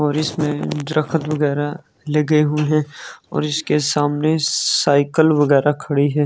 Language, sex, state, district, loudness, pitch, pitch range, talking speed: Hindi, male, Delhi, New Delhi, -18 LUFS, 150 Hz, 145-155 Hz, 135 wpm